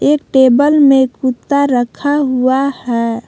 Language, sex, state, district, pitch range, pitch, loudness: Hindi, female, Jharkhand, Palamu, 250-285 Hz, 265 Hz, -12 LUFS